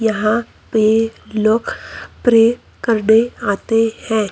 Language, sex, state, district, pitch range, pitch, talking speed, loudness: Hindi, male, Uttar Pradesh, Lucknow, 215-230 Hz, 225 Hz, 95 wpm, -16 LUFS